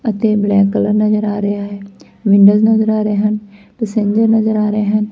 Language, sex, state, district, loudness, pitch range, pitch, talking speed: Punjabi, female, Punjab, Fazilka, -14 LUFS, 205-215 Hz, 210 Hz, 200 wpm